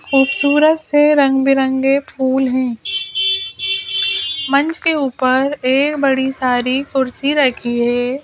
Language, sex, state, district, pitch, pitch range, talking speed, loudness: Hindi, female, Madhya Pradesh, Bhopal, 270 Hz, 260-290 Hz, 110 wpm, -16 LUFS